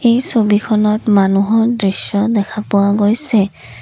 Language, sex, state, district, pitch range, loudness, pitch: Assamese, female, Assam, Kamrup Metropolitan, 200-225 Hz, -14 LUFS, 210 Hz